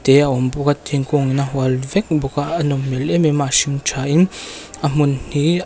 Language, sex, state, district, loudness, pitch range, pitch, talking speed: Mizo, female, Mizoram, Aizawl, -18 LUFS, 135-150 Hz, 145 Hz, 265 wpm